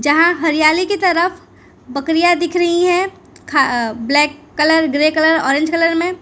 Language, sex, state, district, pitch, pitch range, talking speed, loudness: Hindi, female, Gujarat, Valsad, 320 Hz, 295-350 Hz, 155 wpm, -15 LUFS